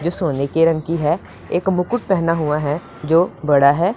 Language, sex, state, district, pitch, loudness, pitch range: Hindi, female, Punjab, Pathankot, 165 Hz, -18 LUFS, 150-175 Hz